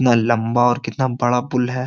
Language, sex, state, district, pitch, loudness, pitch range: Hindi, male, Uttar Pradesh, Jyotiba Phule Nagar, 120 Hz, -18 LUFS, 120-125 Hz